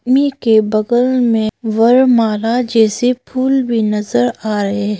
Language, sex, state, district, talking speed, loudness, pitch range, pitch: Hindi, female, Arunachal Pradesh, Papum Pare, 110 wpm, -14 LUFS, 215-245 Hz, 230 Hz